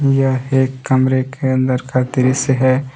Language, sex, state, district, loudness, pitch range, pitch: Hindi, male, Jharkhand, Deoghar, -16 LUFS, 130-135 Hz, 130 Hz